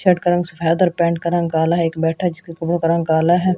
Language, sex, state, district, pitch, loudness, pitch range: Hindi, female, Delhi, New Delhi, 170 Hz, -18 LUFS, 165-175 Hz